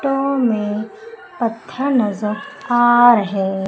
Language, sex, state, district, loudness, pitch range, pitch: Hindi, female, Madhya Pradesh, Umaria, -17 LUFS, 210-275 Hz, 240 Hz